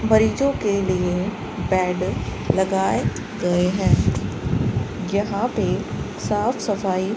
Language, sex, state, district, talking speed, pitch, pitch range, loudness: Hindi, female, Rajasthan, Bikaner, 100 wpm, 190 Hz, 180-205 Hz, -22 LUFS